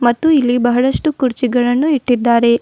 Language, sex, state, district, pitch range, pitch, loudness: Kannada, female, Karnataka, Bidar, 240-270 Hz, 245 Hz, -14 LUFS